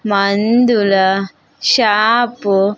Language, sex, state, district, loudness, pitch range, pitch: Telugu, female, Andhra Pradesh, Sri Satya Sai, -13 LUFS, 195-230 Hz, 205 Hz